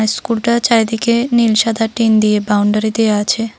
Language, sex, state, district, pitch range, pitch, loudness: Bengali, female, Tripura, South Tripura, 215-230 Hz, 225 Hz, -14 LUFS